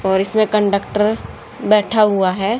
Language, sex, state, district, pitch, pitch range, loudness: Hindi, female, Haryana, Charkhi Dadri, 210 Hz, 195-215 Hz, -16 LUFS